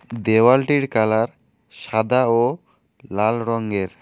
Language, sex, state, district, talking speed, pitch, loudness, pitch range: Bengali, male, West Bengal, Alipurduar, 105 wpm, 115 Hz, -19 LUFS, 110-125 Hz